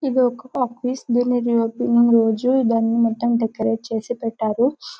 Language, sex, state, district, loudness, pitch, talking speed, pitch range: Telugu, male, Telangana, Karimnagar, -20 LUFS, 235 Hz, 145 wpm, 230-245 Hz